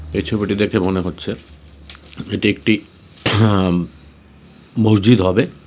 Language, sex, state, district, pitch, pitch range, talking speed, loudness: Bengali, male, Tripura, West Tripura, 95 Hz, 80-105 Hz, 105 wpm, -17 LUFS